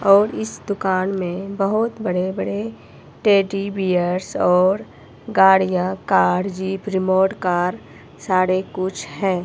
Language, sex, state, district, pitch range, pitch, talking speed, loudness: Hindi, female, Himachal Pradesh, Shimla, 185-195 Hz, 190 Hz, 115 wpm, -20 LUFS